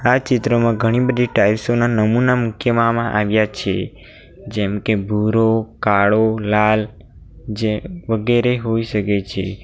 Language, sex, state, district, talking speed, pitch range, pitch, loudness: Gujarati, male, Gujarat, Valsad, 130 wpm, 105-120 Hz, 110 Hz, -17 LUFS